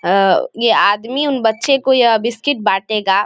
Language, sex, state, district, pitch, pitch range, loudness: Hindi, female, Bihar, Samastipur, 225 Hz, 205-265 Hz, -15 LUFS